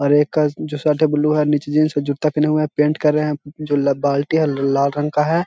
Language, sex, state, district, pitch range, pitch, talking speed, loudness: Hindi, male, Bihar, Jahanabad, 145-150 Hz, 150 Hz, 305 wpm, -18 LUFS